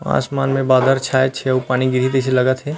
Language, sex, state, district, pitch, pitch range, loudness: Chhattisgarhi, male, Chhattisgarh, Rajnandgaon, 130 Hz, 130-135 Hz, -17 LUFS